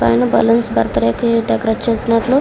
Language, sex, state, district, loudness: Telugu, female, Andhra Pradesh, Srikakulam, -15 LUFS